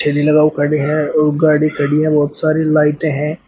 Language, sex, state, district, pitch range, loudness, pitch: Hindi, male, Uttar Pradesh, Shamli, 150-155 Hz, -14 LUFS, 150 Hz